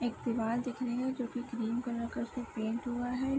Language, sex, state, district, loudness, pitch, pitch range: Hindi, female, Bihar, Sitamarhi, -36 LUFS, 240 Hz, 235-250 Hz